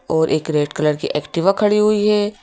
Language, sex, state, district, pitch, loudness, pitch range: Hindi, female, Madhya Pradesh, Bhopal, 175 Hz, -17 LUFS, 150-210 Hz